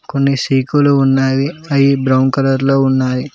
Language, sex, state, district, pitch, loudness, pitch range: Telugu, male, Telangana, Mahabubabad, 135 Hz, -13 LUFS, 135-140 Hz